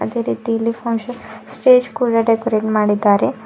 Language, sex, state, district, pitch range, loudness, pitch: Kannada, female, Karnataka, Bidar, 210-240 Hz, -17 LUFS, 225 Hz